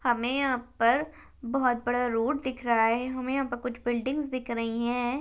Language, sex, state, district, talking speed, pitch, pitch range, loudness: Hindi, female, Chhattisgarh, Rajnandgaon, 195 wpm, 245 Hz, 235-260 Hz, -28 LUFS